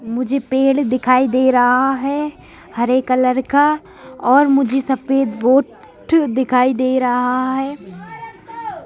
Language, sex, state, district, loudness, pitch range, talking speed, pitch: Hindi, male, Madhya Pradesh, Bhopal, -16 LUFS, 250-275 Hz, 115 wpm, 260 Hz